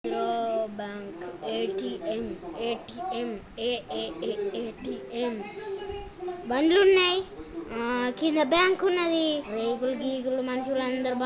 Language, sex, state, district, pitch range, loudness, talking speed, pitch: Telugu, female, Andhra Pradesh, Chittoor, 235-360 Hz, -27 LUFS, 70 wpm, 260 Hz